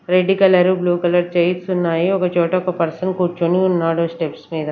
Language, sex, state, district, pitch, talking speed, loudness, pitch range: Telugu, female, Andhra Pradesh, Sri Satya Sai, 180 Hz, 165 wpm, -17 LUFS, 170-185 Hz